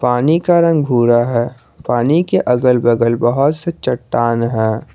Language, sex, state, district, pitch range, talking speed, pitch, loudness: Hindi, male, Jharkhand, Garhwa, 120-150 Hz, 155 wpm, 125 Hz, -14 LUFS